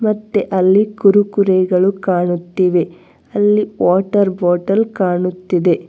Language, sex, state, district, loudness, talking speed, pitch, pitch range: Kannada, female, Karnataka, Bangalore, -15 LUFS, 90 wpm, 190 Hz, 180-205 Hz